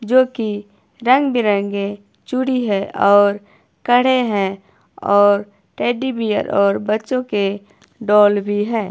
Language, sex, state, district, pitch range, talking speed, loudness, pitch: Hindi, female, Himachal Pradesh, Shimla, 200-245 Hz, 115 wpm, -17 LUFS, 210 Hz